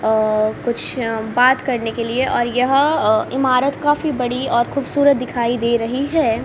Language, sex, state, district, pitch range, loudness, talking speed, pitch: Hindi, female, Haryana, Rohtak, 230-270 Hz, -18 LUFS, 165 wpm, 250 Hz